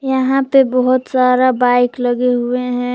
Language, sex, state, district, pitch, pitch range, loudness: Hindi, female, Jharkhand, Palamu, 250 Hz, 245-260 Hz, -14 LUFS